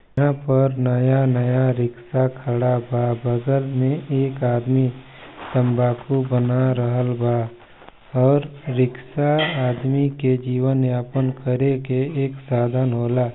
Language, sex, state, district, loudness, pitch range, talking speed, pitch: Hindi, male, Chhattisgarh, Balrampur, -21 LUFS, 125-135 Hz, 110 wpm, 130 Hz